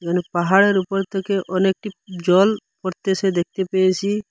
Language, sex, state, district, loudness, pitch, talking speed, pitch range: Bengali, male, Assam, Hailakandi, -20 LUFS, 190 Hz, 125 wpm, 185-200 Hz